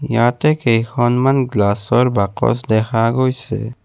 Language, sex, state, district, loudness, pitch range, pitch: Assamese, male, Assam, Kamrup Metropolitan, -16 LUFS, 115-130 Hz, 120 Hz